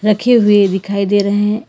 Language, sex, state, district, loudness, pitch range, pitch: Hindi, female, Karnataka, Bangalore, -13 LUFS, 200-215 Hz, 205 Hz